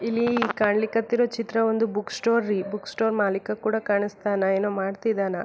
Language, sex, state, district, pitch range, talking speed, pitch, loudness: Kannada, female, Karnataka, Belgaum, 205-225 Hz, 165 wpm, 210 Hz, -24 LUFS